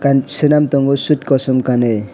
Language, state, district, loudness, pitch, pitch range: Kokborok, Tripura, West Tripura, -14 LUFS, 135 Hz, 130-145 Hz